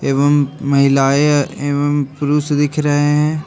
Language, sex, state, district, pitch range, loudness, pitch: Hindi, male, Jharkhand, Ranchi, 140-150 Hz, -15 LUFS, 145 Hz